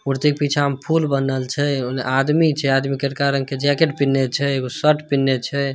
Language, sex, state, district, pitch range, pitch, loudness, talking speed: Hindi, male, Bihar, Samastipur, 135-145 Hz, 140 Hz, -19 LUFS, 220 wpm